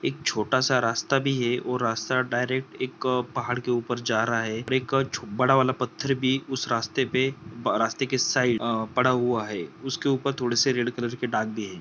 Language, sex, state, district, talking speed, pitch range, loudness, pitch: Hindi, male, Jharkhand, Sahebganj, 220 wpm, 120-130 Hz, -25 LUFS, 125 Hz